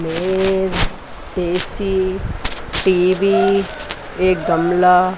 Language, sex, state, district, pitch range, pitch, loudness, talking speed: Hindi, female, Chandigarh, Chandigarh, 180-190 Hz, 185 Hz, -17 LUFS, 60 wpm